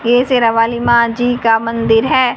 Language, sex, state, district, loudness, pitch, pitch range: Hindi, female, Haryana, Charkhi Dadri, -13 LUFS, 235 Hz, 230-245 Hz